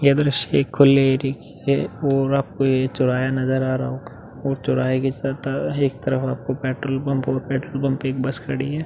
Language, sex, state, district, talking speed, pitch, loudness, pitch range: Hindi, male, Uttar Pradesh, Muzaffarnagar, 190 wpm, 135 Hz, -21 LUFS, 130-140 Hz